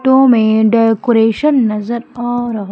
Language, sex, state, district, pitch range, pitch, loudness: Hindi, female, Madhya Pradesh, Umaria, 225-245 Hz, 235 Hz, -13 LUFS